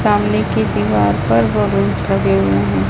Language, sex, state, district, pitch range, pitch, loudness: Hindi, female, Chhattisgarh, Raipur, 100-105 Hz, 105 Hz, -15 LUFS